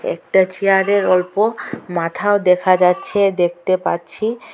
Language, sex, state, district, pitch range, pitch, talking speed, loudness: Bengali, female, Assam, Hailakandi, 180-205 Hz, 190 Hz, 105 wpm, -17 LUFS